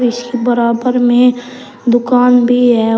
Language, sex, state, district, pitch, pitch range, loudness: Hindi, male, Uttar Pradesh, Shamli, 245 Hz, 240-250 Hz, -12 LUFS